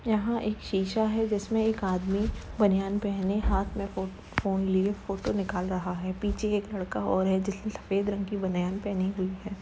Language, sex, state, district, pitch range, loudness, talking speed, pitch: Hindi, female, Uttar Pradesh, Jalaun, 190-210 Hz, -29 LUFS, 195 wpm, 200 Hz